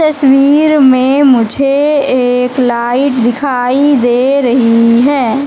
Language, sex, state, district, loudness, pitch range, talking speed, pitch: Hindi, female, Madhya Pradesh, Katni, -9 LUFS, 245-280 Hz, 100 wpm, 260 Hz